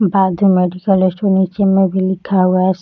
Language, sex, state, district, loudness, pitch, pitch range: Hindi, female, Uttar Pradesh, Budaun, -14 LUFS, 190 Hz, 185-195 Hz